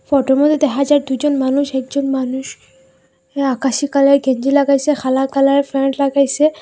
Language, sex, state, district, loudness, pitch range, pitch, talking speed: Bengali, female, Assam, Hailakandi, -15 LUFS, 265-280 Hz, 275 Hz, 155 wpm